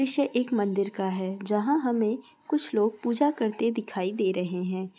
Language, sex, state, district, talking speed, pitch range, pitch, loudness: Hindi, female, Bihar, Purnia, 180 wpm, 190-250 Hz, 220 Hz, -27 LUFS